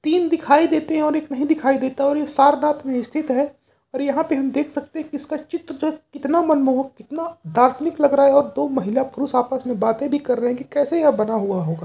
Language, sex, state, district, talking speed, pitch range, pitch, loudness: Hindi, male, Uttar Pradesh, Varanasi, 265 wpm, 260-305 Hz, 285 Hz, -20 LUFS